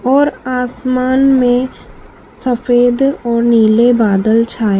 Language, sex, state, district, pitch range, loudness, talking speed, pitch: Hindi, female, Madhya Pradesh, Dhar, 235-255 Hz, -12 LUFS, 100 wpm, 245 Hz